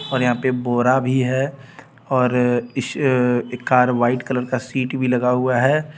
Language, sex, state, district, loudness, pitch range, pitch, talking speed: Hindi, male, Jharkhand, Deoghar, -19 LUFS, 125-130 Hz, 130 Hz, 180 wpm